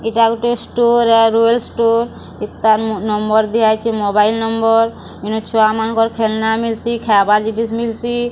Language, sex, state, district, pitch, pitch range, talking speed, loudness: Odia, female, Odisha, Sambalpur, 225 Hz, 220-230 Hz, 120 wpm, -15 LUFS